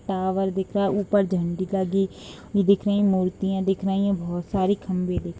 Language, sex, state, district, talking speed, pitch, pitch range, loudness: Hindi, female, Bihar, Gopalganj, 220 wpm, 195 Hz, 185-200 Hz, -24 LUFS